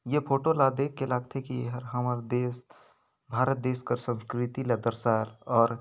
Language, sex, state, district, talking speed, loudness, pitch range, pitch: Sadri, male, Chhattisgarh, Jashpur, 195 wpm, -29 LUFS, 120-130 Hz, 125 Hz